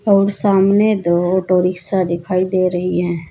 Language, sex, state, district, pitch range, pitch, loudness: Hindi, female, Uttar Pradesh, Saharanpur, 180-195 Hz, 185 Hz, -16 LUFS